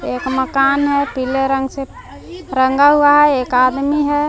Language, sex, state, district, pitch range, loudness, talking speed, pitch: Hindi, female, Jharkhand, Palamu, 260-290 Hz, -14 LUFS, 170 wpm, 275 Hz